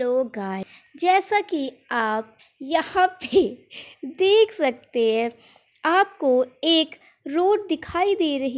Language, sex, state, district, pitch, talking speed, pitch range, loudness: Hindi, male, Bihar, Gaya, 300 Hz, 120 wpm, 255-370 Hz, -22 LUFS